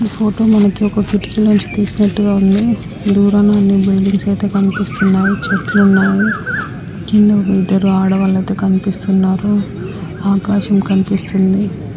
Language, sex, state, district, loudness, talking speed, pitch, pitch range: Telugu, female, Andhra Pradesh, Srikakulam, -14 LUFS, 90 wpm, 200 Hz, 195-205 Hz